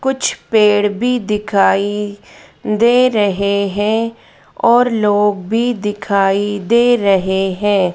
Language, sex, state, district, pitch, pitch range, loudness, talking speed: Hindi, female, Madhya Pradesh, Dhar, 210 Hz, 200-230 Hz, -15 LUFS, 105 wpm